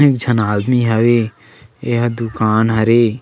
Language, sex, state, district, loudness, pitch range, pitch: Chhattisgarhi, male, Chhattisgarh, Sarguja, -15 LUFS, 110-120 Hz, 115 Hz